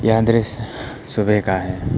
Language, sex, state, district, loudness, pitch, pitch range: Hindi, male, Uttar Pradesh, Lucknow, -19 LUFS, 105 Hz, 95-115 Hz